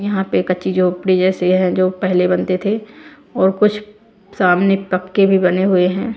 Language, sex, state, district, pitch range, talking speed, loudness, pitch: Hindi, female, Bihar, Kaimur, 185-200 Hz, 175 wpm, -16 LUFS, 190 Hz